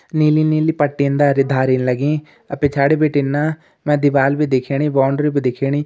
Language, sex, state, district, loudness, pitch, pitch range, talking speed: Garhwali, male, Uttarakhand, Uttarkashi, -17 LUFS, 145 Hz, 135-150 Hz, 155 wpm